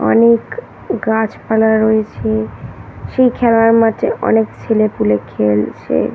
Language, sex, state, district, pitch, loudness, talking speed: Bengali, female, West Bengal, North 24 Parganas, 220 Hz, -14 LUFS, 90 wpm